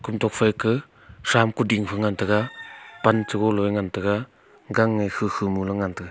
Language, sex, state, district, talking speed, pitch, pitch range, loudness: Wancho, male, Arunachal Pradesh, Longding, 185 wpm, 105 Hz, 100-110 Hz, -23 LUFS